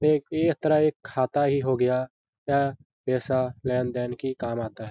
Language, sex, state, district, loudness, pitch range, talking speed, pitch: Hindi, male, Bihar, Lakhisarai, -26 LUFS, 125-140 Hz, 185 wpm, 130 Hz